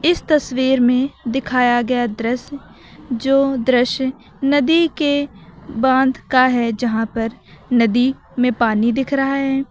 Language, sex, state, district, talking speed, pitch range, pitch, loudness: Hindi, female, Uttar Pradesh, Lucknow, 130 wpm, 240-275 Hz, 255 Hz, -17 LUFS